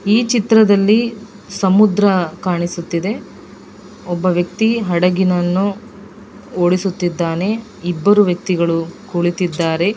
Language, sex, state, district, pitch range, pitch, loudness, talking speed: Kannada, female, Karnataka, Dakshina Kannada, 175-210 Hz, 190 Hz, -16 LUFS, 65 wpm